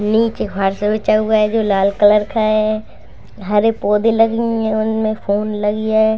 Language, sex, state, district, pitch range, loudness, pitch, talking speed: Hindi, female, Bihar, Gaya, 205-220 Hz, -16 LUFS, 215 Hz, 175 wpm